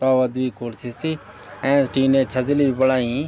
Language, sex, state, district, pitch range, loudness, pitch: Garhwali, male, Uttarakhand, Tehri Garhwal, 125-140 Hz, -20 LUFS, 130 Hz